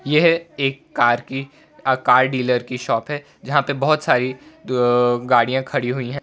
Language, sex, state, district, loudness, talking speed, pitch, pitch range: Hindi, male, Gujarat, Valsad, -19 LUFS, 185 wpm, 130 Hz, 125-140 Hz